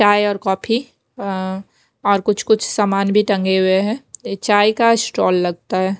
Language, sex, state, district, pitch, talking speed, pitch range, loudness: Hindi, female, Bihar, West Champaran, 200 Hz, 170 wpm, 190-215 Hz, -17 LUFS